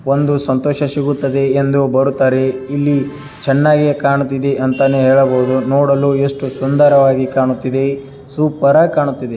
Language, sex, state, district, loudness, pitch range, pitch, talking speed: Kannada, male, Karnataka, Dharwad, -14 LUFS, 135-145 Hz, 140 Hz, 110 wpm